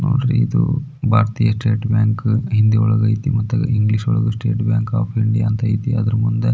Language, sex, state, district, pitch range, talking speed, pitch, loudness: Kannada, male, Karnataka, Belgaum, 110-115 Hz, 175 wpm, 110 Hz, -17 LUFS